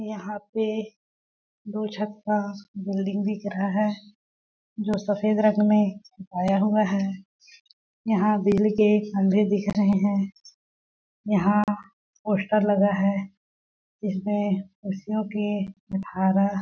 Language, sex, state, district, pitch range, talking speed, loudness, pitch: Hindi, female, Chhattisgarh, Balrampur, 195-210 Hz, 110 wpm, -25 LUFS, 205 Hz